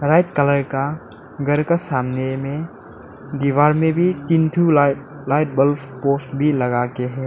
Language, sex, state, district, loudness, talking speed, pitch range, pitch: Hindi, male, Arunachal Pradesh, Lower Dibang Valley, -19 LUFS, 155 wpm, 135-155 Hz, 140 Hz